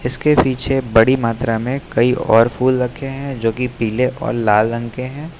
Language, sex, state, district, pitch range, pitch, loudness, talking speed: Hindi, male, Uttar Pradesh, Lucknow, 115-135 Hz, 125 Hz, -17 LUFS, 200 wpm